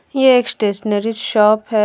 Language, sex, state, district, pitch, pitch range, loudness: Hindi, female, Jharkhand, Deoghar, 215 Hz, 210-240 Hz, -15 LUFS